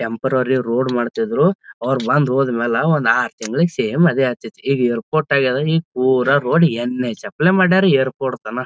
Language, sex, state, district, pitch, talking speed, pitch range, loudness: Kannada, male, Karnataka, Gulbarga, 130 Hz, 175 wpm, 125-160 Hz, -17 LUFS